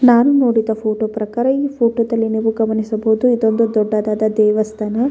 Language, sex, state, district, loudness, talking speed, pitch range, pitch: Kannada, female, Karnataka, Bellary, -16 LUFS, 130 wpm, 215-235 Hz, 220 Hz